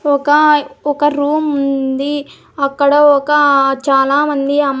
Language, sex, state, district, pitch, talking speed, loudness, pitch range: Telugu, female, Andhra Pradesh, Sri Satya Sai, 285 Hz, 110 wpm, -13 LUFS, 275-295 Hz